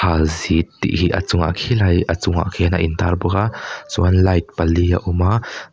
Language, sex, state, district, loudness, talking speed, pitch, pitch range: Mizo, male, Mizoram, Aizawl, -18 LUFS, 230 wpm, 90 Hz, 85-95 Hz